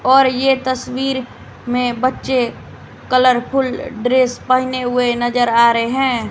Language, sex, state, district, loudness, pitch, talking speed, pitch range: Hindi, female, Bihar, West Champaran, -16 LUFS, 255 Hz, 125 wpm, 245-260 Hz